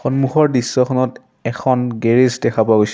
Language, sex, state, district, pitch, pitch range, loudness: Assamese, male, Assam, Sonitpur, 125 Hz, 115-130 Hz, -16 LUFS